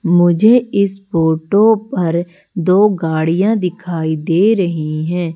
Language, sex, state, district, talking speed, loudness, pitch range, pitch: Hindi, female, Madhya Pradesh, Umaria, 110 wpm, -14 LUFS, 165-200 Hz, 180 Hz